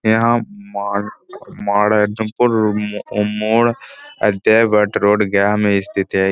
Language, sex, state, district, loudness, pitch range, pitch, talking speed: Hindi, male, Bihar, Gaya, -16 LUFS, 100-110 Hz, 105 Hz, 85 wpm